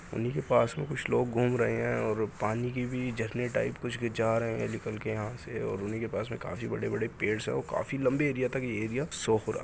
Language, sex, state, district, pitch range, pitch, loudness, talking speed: Hindi, male, Bihar, Jahanabad, 110-125 Hz, 115 Hz, -31 LUFS, 265 wpm